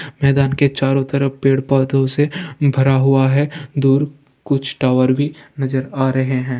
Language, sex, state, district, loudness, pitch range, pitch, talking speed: Hindi, male, Bihar, Jamui, -17 LUFS, 135-140 Hz, 135 Hz, 165 wpm